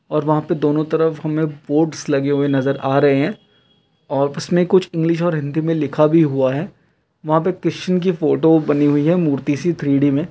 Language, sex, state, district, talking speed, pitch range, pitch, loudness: Hindi, male, Bihar, Jamui, 210 wpm, 145-165 Hz, 155 Hz, -17 LUFS